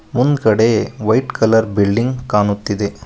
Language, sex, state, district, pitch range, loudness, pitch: Kannada, male, Karnataka, Koppal, 105-115 Hz, -16 LUFS, 110 Hz